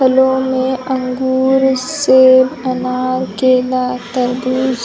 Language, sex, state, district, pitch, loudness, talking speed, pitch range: Hindi, female, Chhattisgarh, Bilaspur, 255 Hz, -14 LUFS, 85 wpm, 255-260 Hz